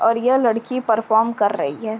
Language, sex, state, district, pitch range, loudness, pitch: Hindi, female, Uttar Pradesh, Jyotiba Phule Nagar, 220-245 Hz, -19 LUFS, 230 Hz